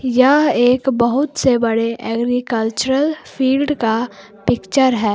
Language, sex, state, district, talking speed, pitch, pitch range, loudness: Hindi, female, Jharkhand, Palamu, 115 wpm, 245 Hz, 230-265 Hz, -16 LUFS